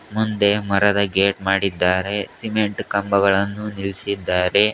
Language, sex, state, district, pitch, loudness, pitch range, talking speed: Kannada, male, Karnataka, Koppal, 100 Hz, -19 LUFS, 95-105 Hz, 90 wpm